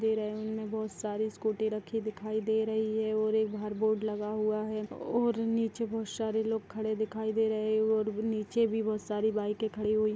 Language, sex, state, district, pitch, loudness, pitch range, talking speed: Hindi, female, Chhattisgarh, Jashpur, 215 Hz, -32 LUFS, 215-220 Hz, 200 wpm